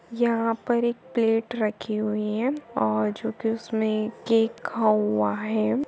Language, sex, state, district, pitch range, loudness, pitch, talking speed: Hindi, female, Uttar Pradesh, Budaun, 215-235 Hz, -25 LUFS, 225 Hz, 145 wpm